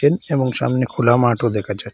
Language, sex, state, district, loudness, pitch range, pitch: Bengali, male, Assam, Hailakandi, -18 LUFS, 120-135 Hz, 120 Hz